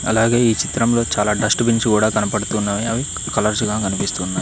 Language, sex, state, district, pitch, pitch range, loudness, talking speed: Telugu, male, Telangana, Mahabubabad, 110 Hz, 105-115 Hz, -18 LUFS, 165 wpm